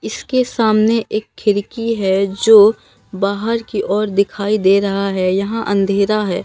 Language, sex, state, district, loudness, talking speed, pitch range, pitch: Hindi, female, Bihar, Katihar, -16 LUFS, 150 wpm, 195-220 Hz, 205 Hz